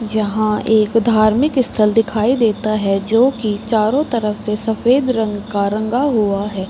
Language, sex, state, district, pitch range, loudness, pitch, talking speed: Hindi, female, Uttar Pradesh, Varanasi, 210-230 Hz, -16 LUFS, 215 Hz, 160 wpm